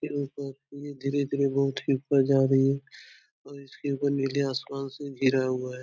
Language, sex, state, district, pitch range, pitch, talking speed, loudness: Hindi, male, Uttar Pradesh, Etah, 135-140 Hz, 140 Hz, 165 wpm, -27 LUFS